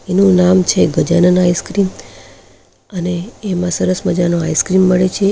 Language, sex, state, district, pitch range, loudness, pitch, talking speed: Gujarati, female, Gujarat, Valsad, 165-185 Hz, -14 LUFS, 180 Hz, 135 wpm